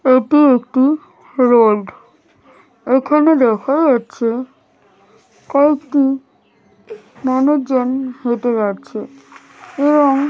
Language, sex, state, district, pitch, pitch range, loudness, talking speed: Bengali, female, West Bengal, North 24 Parganas, 265 Hz, 245-290 Hz, -15 LUFS, 65 wpm